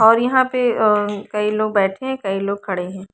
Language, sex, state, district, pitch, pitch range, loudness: Hindi, female, Chandigarh, Chandigarh, 210 Hz, 195-235 Hz, -19 LUFS